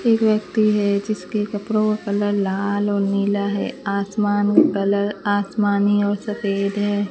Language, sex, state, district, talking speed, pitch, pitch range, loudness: Hindi, female, Rajasthan, Bikaner, 145 wpm, 205 Hz, 200-210 Hz, -20 LUFS